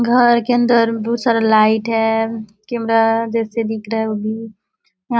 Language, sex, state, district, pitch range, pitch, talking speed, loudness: Hindi, female, Chhattisgarh, Balrampur, 220-235 Hz, 225 Hz, 175 wpm, -16 LUFS